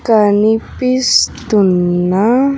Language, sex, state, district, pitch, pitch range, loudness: Telugu, female, Andhra Pradesh, Sri Satya Sai, 215 Hz, 195-255 Hz, -13 LUFS